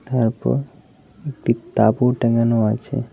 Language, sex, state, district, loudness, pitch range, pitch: Bengali, male, Tripura, West Tripura, -19 LUFS, 115-135 Hz, 120 Hz